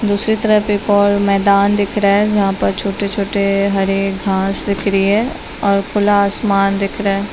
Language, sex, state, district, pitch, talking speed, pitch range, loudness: Hindi, female, Maharashtra, Aurangabad, 200 Hz, 180 wpm, 195-205 Hz, -15 LUFS